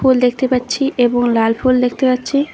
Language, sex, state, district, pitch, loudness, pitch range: Bengali, female, West Bengal, Cooch Behar, 255 Hz, -15 LUFS, 245-260 Hz